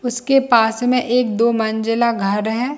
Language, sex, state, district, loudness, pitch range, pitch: Hindi, female, Chhattisgarh, Bilaspur, -17 LUFS, 225-245 Hz, 235 Hz